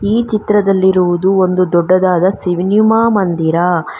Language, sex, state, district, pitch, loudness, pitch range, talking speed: Kannada, female, Karnataka, Bangalore, 185 Hz, -12 LUFS, 180-205 Hz, 90 wpm